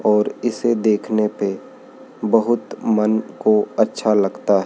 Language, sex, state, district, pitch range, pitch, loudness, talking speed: Hindi, male, Madhya Pradesh, Dhar, 105-110 Hz, 105 Hz, -19 LUFS, 115 wpm